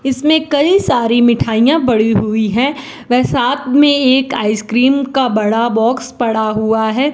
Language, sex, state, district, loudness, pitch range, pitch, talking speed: Hindi, female, Rajasthan, Bikaner, -13 LUFS, 220-275 Hz, 245 Hz, 150 wpm